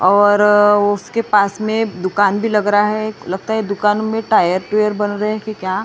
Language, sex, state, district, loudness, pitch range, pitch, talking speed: Hindi, female, Maharashtra, Gondia, -16 LUFS, 205-215 Hz, 210 Hz, 215 wpm